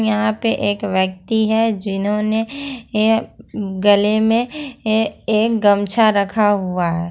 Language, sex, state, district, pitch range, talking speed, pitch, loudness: Hindi, female, Jharkhand, Ranchi, 200-225 Hz, 110 wpm, 215 Hz, -17 LUFS